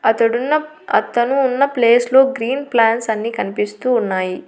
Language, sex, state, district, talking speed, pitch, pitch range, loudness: Telugu, female, Andhra Pradesh, Annamaya, 135 wpm, 240 Hz, 225-265 Hz, -16 LUFS